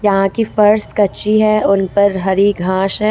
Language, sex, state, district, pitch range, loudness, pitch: Hindi, female, Jharkhand, Ranchi, 195-210 Hz, -14 LUFS, 200 Hz